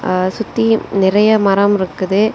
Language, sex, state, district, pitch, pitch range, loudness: Tamil, female, Tamil Nadu, Kanyakumari, 200 Hz, 190-220 Hz, -14 LUFS